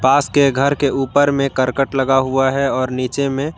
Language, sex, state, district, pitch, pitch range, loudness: Hindi, male, Jharkhand, Garhwa, 135 Hz, 135-140 Hz, -16 LUFS